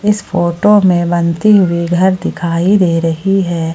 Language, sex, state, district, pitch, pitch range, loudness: Hindi, female, Jharkhand, Ranchi, 175 Hz, 170-195 Hz, -12 LUFS